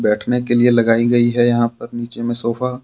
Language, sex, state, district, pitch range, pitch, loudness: Hindi, male, Jharkhand, Deoghar, 115-120 Hz, 120 Hz, -16 LUFS